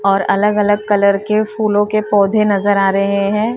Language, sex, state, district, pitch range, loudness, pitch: Hindi, female, Maharashtra, Mumbai Suburban, 200-210 Hz, -14 LUFS, 205 Hz